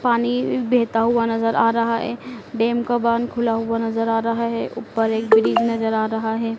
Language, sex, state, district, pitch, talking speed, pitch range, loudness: Hindi, female, Madhya Pradesh, Dhar, 230 Hz, 210 wpm, 225-235 Hz, -20 LUFS